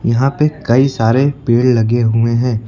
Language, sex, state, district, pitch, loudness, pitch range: Hindi, male, Uttar Pradesh, Lucknow, 120 Hz, -13 LUFS, 115-135 Hz